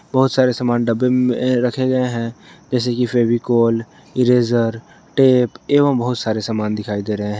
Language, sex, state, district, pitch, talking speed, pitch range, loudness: Hindi, male, Jharkhand, Garhwa, 120 Hz, 170 wpm, 115-125 Hz, -18 LUFS